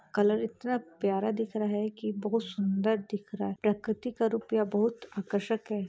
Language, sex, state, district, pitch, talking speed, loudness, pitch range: Hindi, female, Chhattisgarh, Bastar, 215 Hz, 205 wpm, -31 LUFS, 205-225 Hz